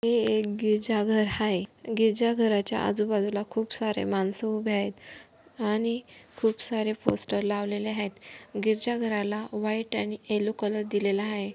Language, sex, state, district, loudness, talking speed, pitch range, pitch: Marathi, female, Maharashtra, Dhule, -28 LUFS, 135 wpm, 205-225 Hz, 215 Hz